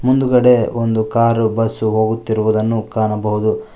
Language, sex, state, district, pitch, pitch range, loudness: Kannada, male, Karnataka, Koppal, 110 Hz, 110-115 Hz, -16 LUFS